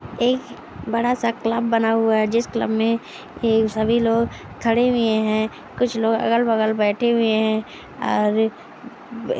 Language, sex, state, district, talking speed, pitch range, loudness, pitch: Hindi, female, West Bengal, Purulia, 145 wpm, 220-235 Hz, -20 LUFS, 230 Hz